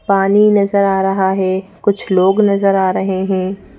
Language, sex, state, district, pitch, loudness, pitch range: Hindi, female, Madhya Pradesh, Bhopal, 195 Hz, -14 LUFS, 190-200 Hz